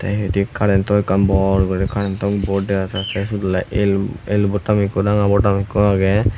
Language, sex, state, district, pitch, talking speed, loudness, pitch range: Chakma, male, Tripura, Unakoti, 100 Hz, 205 wpm, -18 LUFS, 95-105 Hz